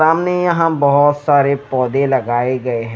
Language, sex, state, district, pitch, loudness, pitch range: Hindi, male, Himachal Pradesh, Shimla, 140 Hz, -15 LUFS, 130-155 Hz